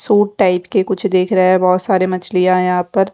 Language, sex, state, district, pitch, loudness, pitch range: Hindi, female, Odisha, Khordha, 185 Hz, -14 LUFS, 185-195 Hz